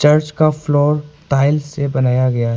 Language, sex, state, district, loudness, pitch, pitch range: Hindi, male, Arunachal Pradesh, Papum Pare, -16 LUFS, 145 Hz, 135-150 Hz